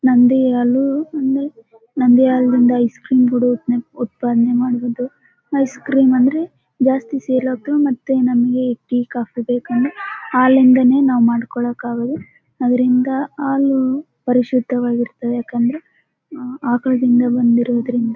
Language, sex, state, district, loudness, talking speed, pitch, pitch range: Kannada, female, Karnataka, Bellary, -16 LUFS, 110 wpm, 250 Hz, 245-270 Hz